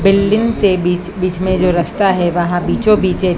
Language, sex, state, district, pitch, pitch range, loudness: Hindi, female, Maharashtra, Mumbai Suburban, 185 Hz, 175-195 Hz, -14 LUFS